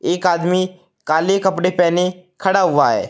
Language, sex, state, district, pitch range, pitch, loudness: Hindi, male, Uttar Pradesh, Saharanpur, 175-190 Hz, 180 Hz, -17 LUFS